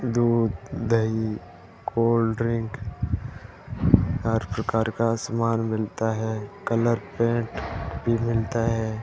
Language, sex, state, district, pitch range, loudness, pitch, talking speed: Hindi, male, Rajasthan, Bikaner, 110-115 Hz, -25 LUFS, 115 Hz, 100 wpm